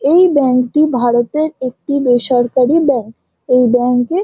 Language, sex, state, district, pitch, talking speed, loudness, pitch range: Bengali, female, West Bengal, Jhargram, 255 Hz, 170 wpm, -13 LUFS, 245-295 Hz